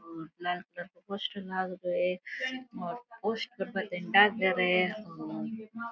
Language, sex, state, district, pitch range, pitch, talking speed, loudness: Rajasthani, female, Rajasthan, Nagaur, 180-220 Hz, 190 Hz, 120 wpm, -31 LUFS